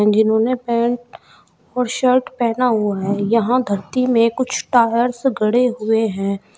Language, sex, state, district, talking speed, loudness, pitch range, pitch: Hindi, female, Uttar Pradesh, Shamli, 135 wpm, -18 LUFS, 215-250 Hz, 235 Hz